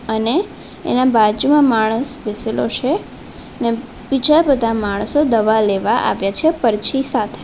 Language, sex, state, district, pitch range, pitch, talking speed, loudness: Gujarati, female, Gujarat, Valsad, 215-275 Hz, 230 Hz, 130 wpm, -16 LUFS